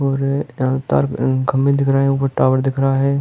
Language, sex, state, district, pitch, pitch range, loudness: Hindi, male, Uttar Pradesh, Hamirpur, 135 Hz, 130-140 Hz, -17 LUFS